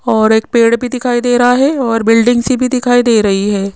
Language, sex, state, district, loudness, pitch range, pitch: Hindi, female, Rajasthan, Jaipur, -11 LUFS, 225-250 Hz, 240 Hz